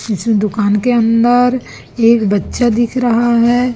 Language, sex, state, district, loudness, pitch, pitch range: Hindi, female, Chhattisgarh, Raipur, -13 LUFS, 235 Hz, 220-245 Hz